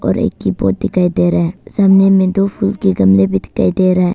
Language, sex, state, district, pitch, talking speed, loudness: Hindi, female, Arunachal Pradesh, Papum Pare, 185 Hz, 245 wpm, -13 LUFS